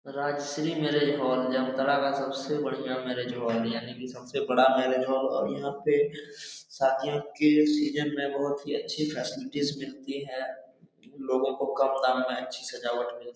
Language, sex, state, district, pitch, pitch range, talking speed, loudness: Hindi, male, Jharkhand, Jamtara, 135 Hz, 130-145 Hz, 170 wpm, -28 LUFS